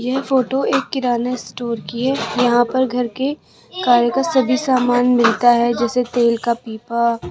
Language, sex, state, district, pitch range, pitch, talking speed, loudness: Hindi, female, Rajasthan, Jaipur, 235-260 Hz, 245 Hz, 180 wpm, -17 LUFS